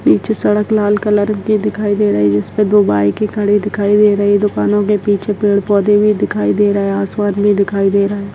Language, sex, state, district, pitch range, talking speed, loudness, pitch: Hindi, female, Karnataka, Dakshina Kannada, 200-210 Hz, 235 wpm, -14 LUFS, 205 Hz